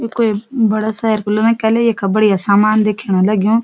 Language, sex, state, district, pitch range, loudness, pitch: Garhwali, female, Uttarakhand, Uttarkashi, 210-225 Hz, -14 LUFS, 215 Hz